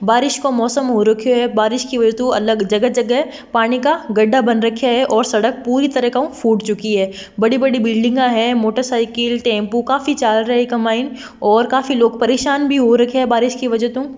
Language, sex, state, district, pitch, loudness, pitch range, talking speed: Marwari, female, Rajasthan, Nagaur, 240 Hz, -16 LUFS, 225-255 Hz, 205 wpm